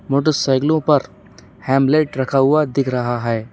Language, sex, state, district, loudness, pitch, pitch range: Hindi, male, Uttar Pradesh, Lalitpur, -17 LUFS, 135 Hz, 125-150 Hz